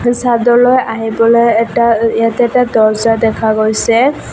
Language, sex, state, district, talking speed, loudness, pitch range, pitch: Assamese, female, Assam, Kamrup Metropolitan, 125 wpm, -11 LUFS, 225-240 Hz, 230 Hz